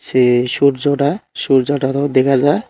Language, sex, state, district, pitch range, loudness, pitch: Bengali, male, Tripura, Unakoti, 130-145 Hz, -15 LUFS, 140 Hz